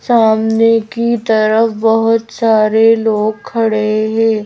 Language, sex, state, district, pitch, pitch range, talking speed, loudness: Hindi, female, Madhya Pradesh, Bhopal, 225 Hz, 220-225 Hz, 105 wpm, -13 LUFS